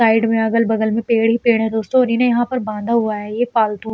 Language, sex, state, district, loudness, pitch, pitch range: Hindi, female, Uttar Pradesh, Etah, -17 LUFS, 225 Hz, 220-235 Hz